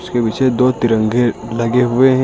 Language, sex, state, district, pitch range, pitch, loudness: Hindi, male, Uttar Pradesh, Lucknow, 115-130 Hz, 120 Hz, -15 LUFS